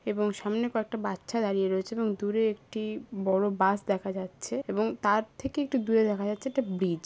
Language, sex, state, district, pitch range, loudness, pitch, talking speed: Bengali, female, West Bengal, Jhargram, 195-225 Hz, -29 LUFS, 210 Hz, 195 wpm